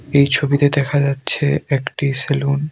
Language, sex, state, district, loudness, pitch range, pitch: Bengali, male, Tripura, Unakoti, -17 LUFS, 140-145 Hz, 140 Hz